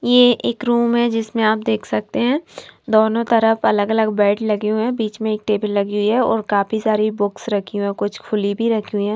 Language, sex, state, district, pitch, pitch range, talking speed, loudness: Hindi, female, Himachal Pradesh, Shimla, 215 Hz, 205-230 Hz, 235 wpm, -18 LUFS